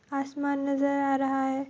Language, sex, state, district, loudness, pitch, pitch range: Hindi, female, Bihar, Saharsa, -28 LUFS, 275 Hz, 270-280 Hz